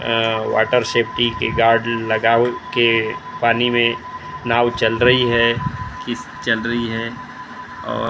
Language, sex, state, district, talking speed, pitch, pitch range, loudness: Hindi, male, Maharashtra, Gondia, 135 wpm, 115 Hz, 115-125 Hz, -18 LUFS